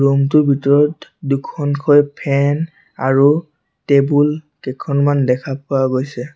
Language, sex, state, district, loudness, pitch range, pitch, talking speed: Assamese, male, Assam, Sonitpur, -16 LUFS, 140-150 Hz, 140 Hz, 105 wpm